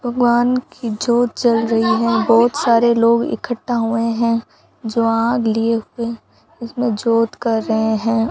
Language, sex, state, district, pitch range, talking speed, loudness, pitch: Hindi, female, Rajasthan, Bikaner, 225-235 Hz, 150 wpm, -17 LUFS, 230 Hz